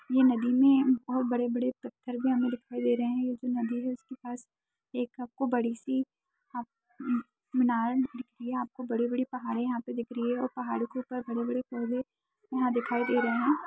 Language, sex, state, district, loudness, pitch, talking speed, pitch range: Hindi, female, Uttar Pradesh, Ghazipur, -30 LUFS, 250 Hz, 205 wpm, 240-255 Hz